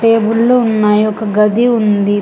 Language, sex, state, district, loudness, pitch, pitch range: Telugu, female, Telangana, Hyderabad, -12 LUFS, 215 Hz, 210-230 Hz